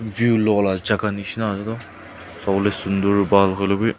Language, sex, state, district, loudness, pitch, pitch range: Nagamese, male, Nagaland, Kohima, -20 LUFS, 100 Hz, 100-110 Hz